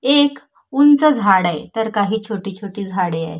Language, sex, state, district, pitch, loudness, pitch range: Marathi, female, Maharashtra, Solapur, 205 Hz, -17 LUFS, 190-275 Hz